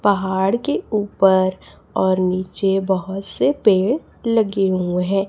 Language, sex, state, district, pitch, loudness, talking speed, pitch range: Hindi, female, Chhattisgarh, Raipur, 195 Hz, -19 LUFS, 125 wpm, 185-205 Hz